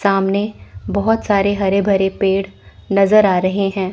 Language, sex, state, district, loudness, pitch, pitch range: Hindi, female, Chandigarh, Chandigarh, -16 LUFS, 195 Hz, 195-200 Hz